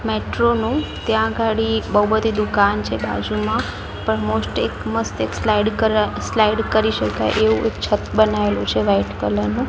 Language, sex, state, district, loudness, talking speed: Gujarati, female, Gujarat, Gandhinagar, -19 LUFS, 165 wpm